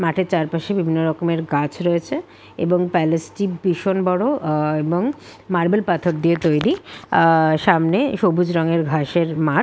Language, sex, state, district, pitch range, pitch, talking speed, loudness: Bengali, female, West Bengal, Kolkata, 160-180 Hz, 170 Hz, 145 wpm, -19 LUFS